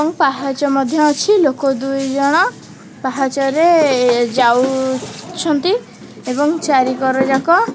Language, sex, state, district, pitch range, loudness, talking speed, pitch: Odia, female, Odisha, Khordha, 265-305 Hz, -15 LUFS, 85 wpm, 275 Hz